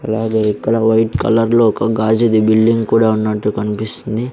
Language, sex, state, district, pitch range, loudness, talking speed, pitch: Telugu, male, Andhra Pradesh, Sri Satya Sai, 110-115 Hz, -15 LUFS, 140 wpm, 110 Hz